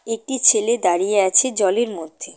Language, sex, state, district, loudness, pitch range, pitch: Bengali, female, West Bengal, Cooch Behar, -17 LUFS, 190-240 Hz, 215 Hz